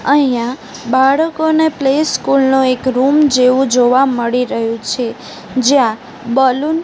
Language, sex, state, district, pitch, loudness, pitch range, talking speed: Gujarati, female, Gujarat, Gandhinagar, 260 Hz, -13 LUFS, 245-280 Hz, 130 wpm